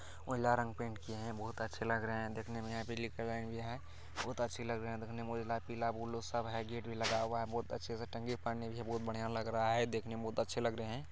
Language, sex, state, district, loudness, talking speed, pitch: Hindi, male, Bihar, Begusarai, -40 LUFS, 265 wpm, 115 Hz